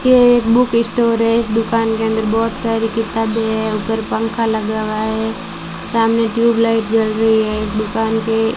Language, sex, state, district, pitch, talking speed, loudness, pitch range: Hindi, female, Rajasthan, Bikaner, 225 Hz, 190 wpm, -16 LUFS, 220-230 Hz